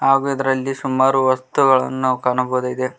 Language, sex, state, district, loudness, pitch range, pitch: Kannada, male, Karnataka, Koppal, -18 LUFS, 130-135 Hz, 130 Hz